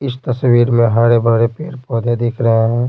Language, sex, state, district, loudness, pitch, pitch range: Hindi, male, Bihar, Patna, -14 LUFS, 120 Hz, 115-125 Hz